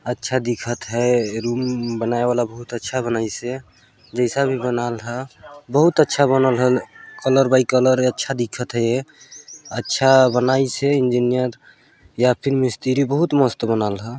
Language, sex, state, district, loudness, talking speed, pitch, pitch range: Chhattisgarhi, male, Chhattisgarh, Balrampur, -19 LUFS, 150 wpm, 125 Hz, 120-135 Hz